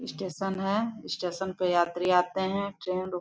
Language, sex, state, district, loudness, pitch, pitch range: Hindi, female, Jharkhand, Sahebganj, -29 LUFS, 185 Hz, 180-195 Hz